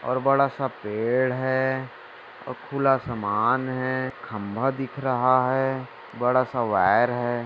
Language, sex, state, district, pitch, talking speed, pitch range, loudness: Hindi, male, Maharashtra, Dhule, 130 Hz, 130 wpm, 120-135 Hz, -24 LUFS